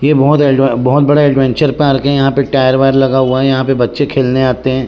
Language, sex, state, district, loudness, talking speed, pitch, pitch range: Chhattisgarhi, male, Chhattisgarh, Rajnandgaon, -11 LUFS, 260 wpm, 135 Hz, 130-140 Hz